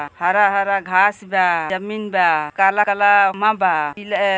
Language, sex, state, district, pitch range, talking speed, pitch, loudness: Hindi, female, Uttar Pradesh, Gorakhpur, 180-205 Hz, 125 wpm, 195 Hz, -17 LUFS